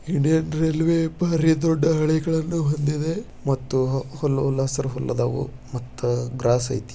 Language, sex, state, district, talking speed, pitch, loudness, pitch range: Kannada, male, Karnataka, Bijapur, 110 wpm, 145 Hz, -23 LUFS, 130-160 Hz